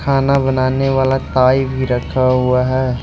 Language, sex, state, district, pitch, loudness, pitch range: Hindi, male, Arunachal Pradesh, Lower Dibang Valley, 130 Hz, -15 LUFS, 130-135 Hz